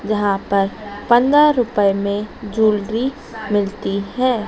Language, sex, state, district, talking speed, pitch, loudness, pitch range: Hindi, female, Madhya Pradesh, Dhar, 105 wpm, 210 Hz, -18 LUFS, 200-240 Hz